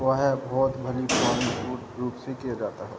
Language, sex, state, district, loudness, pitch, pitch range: Hindi, male, Bihar, Sitamarhi, -27 LUFS, 130 Hz, 120-130 Hz